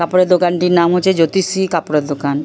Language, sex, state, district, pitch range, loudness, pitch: Bengali, female, West Bengal, Purulia, 160-185 Hz, -14 LUFS, 175 Hz